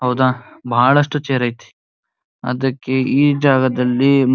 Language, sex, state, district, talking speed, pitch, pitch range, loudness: Kannada, male, Karnataka, Dharwad, 110 wpm, 130 Hz, 125-140 Hz, -16 LUFS